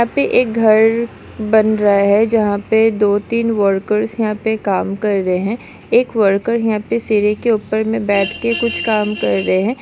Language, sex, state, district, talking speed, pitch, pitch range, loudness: Hindi, female, Chhattisgarh, Sukma, 200 wpm, 215 Hz, 205-225 Hz, -15 LUFS